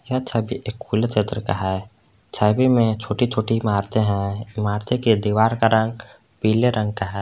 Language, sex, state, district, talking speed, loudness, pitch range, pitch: Hindi, male, Jharkhand, Palamu, 175 wpm, -21 LUFS, 105-115 Hz, 110 Hz